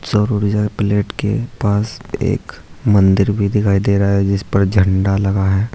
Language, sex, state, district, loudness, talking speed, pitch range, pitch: Hindi, male, Uttar Pradesh, Saharanpur, -16 LUFS, 165 wpm, 100-105 Hz, 100 Hz